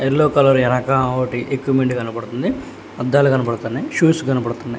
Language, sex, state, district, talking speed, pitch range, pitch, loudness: Telugu, male, Telangana, Hyderabad, 125 wpm, 120-135 Hz, 130 Hz, -18 LUFS